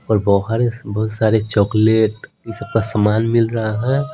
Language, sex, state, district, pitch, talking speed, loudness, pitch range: Hindi, male, Bihar, Patna, 110 Hz, 175 wpm, -17 LUFS, 110-115 Hz